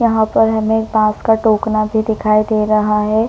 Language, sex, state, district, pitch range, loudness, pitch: Hindi, female, Chhattisgarh, Korba, 215-220 Hz, -14 LUFS, 220 Hz